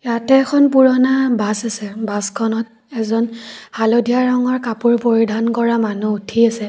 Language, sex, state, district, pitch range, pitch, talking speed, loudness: Assamese, female, Assam, Kamrup Metropolitan, 225-250 Hz, 230 Hz, 135 wpm, -16 LUFS